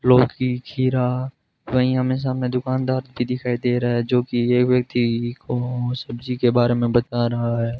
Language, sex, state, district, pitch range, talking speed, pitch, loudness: Hindi, male, Rajasthan, Bikaner, 120-125 Hz, 175 wpm, 125 Hz, -21 LUFS